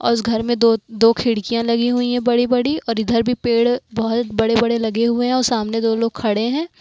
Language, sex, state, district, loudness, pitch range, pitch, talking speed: Hindi, female, Uttar Pradesh, Lucknow, -18 LUFS, 225-245 Hz, 235 Hz, 240 wpm